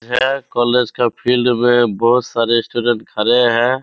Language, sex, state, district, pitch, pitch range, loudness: Hindi, male, Bihar, Purnia, 120 Hz, 120-125 Hz, -15 LUFS